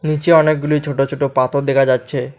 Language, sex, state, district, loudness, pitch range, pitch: Bengali, male, West Bengal, Alipurduar, -15 LUFS, 135-155 Hz, 140 Hz